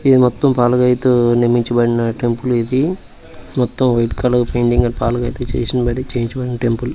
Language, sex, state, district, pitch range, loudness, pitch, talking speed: Telugu, male, Andhra Pradesh, Guntur, 120-125 Hz, -16 LUFS, 120 Hz, 130 wpm